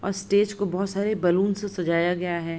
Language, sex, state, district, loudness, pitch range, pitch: Hindi, female, Bihar, Supaul, -24 LUFS, 175-200 Hz, 195 Hz